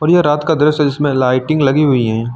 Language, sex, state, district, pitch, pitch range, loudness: Hindi, male, Uttar Pradesh, Lucknow, 145 Hz, 130-150 Hz, -13 LUFS